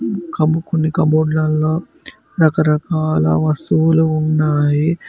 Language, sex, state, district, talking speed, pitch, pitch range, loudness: Telugu, male, Telangana, Mahabubabad, 80 wpm, 155 Hz, 155-160 Hz, -16 LUFS